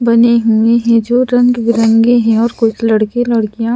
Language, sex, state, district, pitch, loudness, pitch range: Hindi, female, Madhya Pradesh, Bhopal, 230 Hz, -11 LUFS, 225-235 Hz